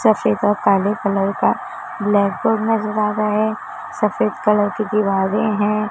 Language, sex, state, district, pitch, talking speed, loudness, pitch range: Hindi, female, Maharashtra, Mumbai Suburban, 210 Hz, 160 wpm, -18 LUFS, 200-215 Hz